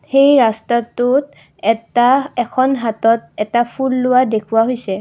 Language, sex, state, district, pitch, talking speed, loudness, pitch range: Assamese, female, Assam, Kamrup Metropolitan, 240 Hz, 120 wpm, -15 LUFS, 225-260 Hz